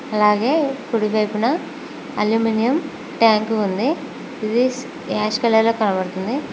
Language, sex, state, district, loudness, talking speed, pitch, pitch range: Telugu, female, Telangana, Mahabubabad, -19 LUFS, 90 wpm, 225 Hz, 215-275 Hz